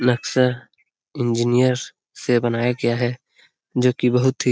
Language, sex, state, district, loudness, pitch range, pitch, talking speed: Hindi, male, Bihar, Lakhisarai, -20 LUFS, 120-125 Hz, 125 Hz, 120 wpm